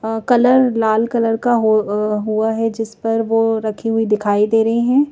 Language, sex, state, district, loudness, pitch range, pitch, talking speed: Hindi, female, Madhya Pradesh, Bhopal, -16 LUFS, 220-230 Hz, 225 Hz, 190 wpm